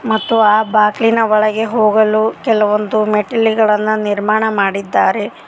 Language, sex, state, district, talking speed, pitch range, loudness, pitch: Kannada, female, Karnataka, Koppal, 100 wpm, 210-220 Hz, -13 LUFS, 215 Hz